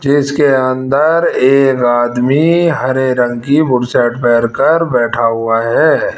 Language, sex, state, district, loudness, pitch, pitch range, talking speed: Hindi, female, Rajasthan, Jaipur, -12 LUFS, 130 Hz, 120-145 Hz, 125 wpm